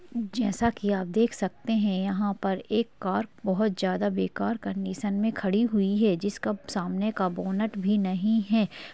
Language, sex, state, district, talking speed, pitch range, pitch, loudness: Hindi, female, Maharashtra, Pune, 175 wpm, 195-225 Hz, 205 Hz, -27 LUFS